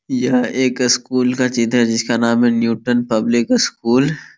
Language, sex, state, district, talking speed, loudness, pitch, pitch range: Hindi, male, Bihar, Gopalganj, 180 wpm, -16 LUFS, 120 Hz, 115-125 Hz